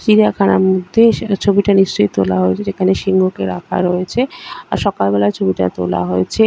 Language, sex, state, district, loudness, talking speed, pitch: Bengali, female, West Bengal, Kolkata, -15 LUFS, 155 wpm, 105 Hz